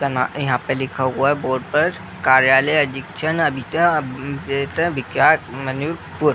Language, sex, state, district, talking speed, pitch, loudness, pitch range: Hindi, male, Bihar, Muzaffarpur, 95 wpm, 135 Hz, -19 LUFS, 130-150 Hz